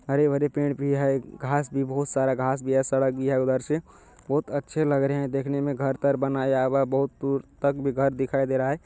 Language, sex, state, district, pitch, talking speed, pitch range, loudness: Maithili, male, Bihar, Kishanganj, 135 Hz, 250 wpm, 135-140 Hz, -25 LUFS